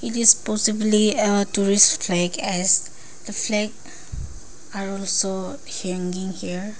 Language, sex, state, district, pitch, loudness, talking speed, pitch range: English, female, Arunachal Pradesh, Lower Dibang Valley, 200 Hz, -20 LUFS, 105 wpm, 185-215 Hz